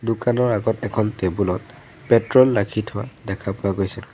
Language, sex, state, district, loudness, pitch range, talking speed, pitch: Assamese, male, Assam, Sonitpur, -21 LUFS, 100-120 Hz, 160 wpm, 110 Hz